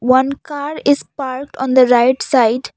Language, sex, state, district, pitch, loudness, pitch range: English, female, Assam, Kamrup Metropolitan, 260 Hz, -15 LUFS, 250-280 Hz